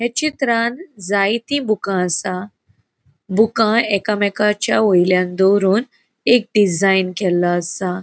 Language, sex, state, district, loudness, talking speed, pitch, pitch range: Konkani, female, Goa, North and South Goa, -17 LUFS, 95 wpm, 200 Hz, 185-225 Hz